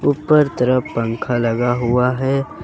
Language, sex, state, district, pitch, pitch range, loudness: Hindi, male, Jharkhand, Ranchi, 125 Hz, 120-145 Hz, -17 LUFS